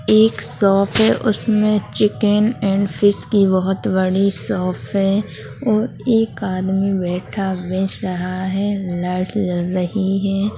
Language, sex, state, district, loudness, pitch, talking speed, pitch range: Hindi, male, Uttarakhand, Tehri Garhwal, -17 LUFS, 195 Hz, 115 wpm, 185-210 Hz